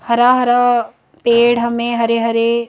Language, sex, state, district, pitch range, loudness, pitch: Hindi, female, Madhya Pradesh, Bhopal, 235-245 Hz, -14 LUFS, 235 Hz